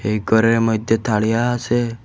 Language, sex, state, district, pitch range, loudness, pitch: Bengali, male, Assam, Hailakandi, 110-115 Hz, -18 LUFS, 115 Hz